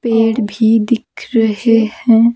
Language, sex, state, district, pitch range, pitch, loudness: Hindi, female, Himachal Pradesh, Shimla, 225-230 Hz, 225 Hz, -14 LUFS